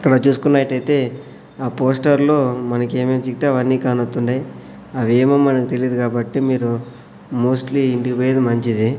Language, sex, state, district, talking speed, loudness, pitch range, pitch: Telugu, male, Andhra Pradesh, Sri Satya Sai, 125 wpm, -18 LUFS, 120-135 Hz, 130 Hz